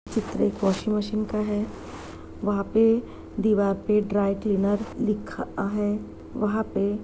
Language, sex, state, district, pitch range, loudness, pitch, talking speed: Hindi, female, Chhattisgarh, Bastar, 200-215 Hz, -25 LUFS, 210 Hz, 130 wpm